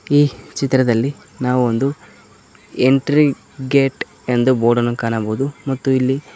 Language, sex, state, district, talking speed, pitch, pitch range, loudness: Kannada, male, Karnataka, Koppal, 115 wpm, 130 Hz, 120-135 Hz, -17 LUFS